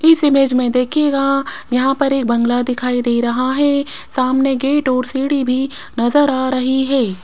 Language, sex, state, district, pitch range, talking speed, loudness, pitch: Hindi, female, Rajasthan, Jaipur, 250-275 Hz, 175 wpm, -16 LUFS, 265 Hz